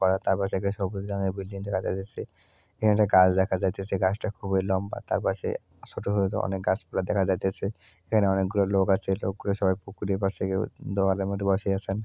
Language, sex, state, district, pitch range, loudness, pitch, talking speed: Bengali, male, West Bengal, Purulia, 95-100 Hz, -27 LUFS, 95 Hz, 180 wpm